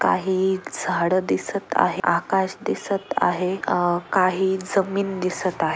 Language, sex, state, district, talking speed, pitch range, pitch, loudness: Marathi, female, Maharashtra, Aurangabad, 125 wpm, 175-190 Hz, 185 Hz, -22 LUFS